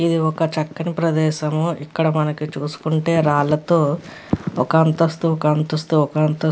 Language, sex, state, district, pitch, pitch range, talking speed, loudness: Telugu, female, Andhra Pradesh, Krishna, 155 Hz, 150-165 Hz, 120 wpm, -19 LUFS